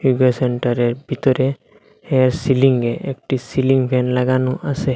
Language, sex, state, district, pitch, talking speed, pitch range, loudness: Bengali, male, Assam, Hailakandi, 130 Hz, 120 wpm, 125-135 Hz, -18 LUFS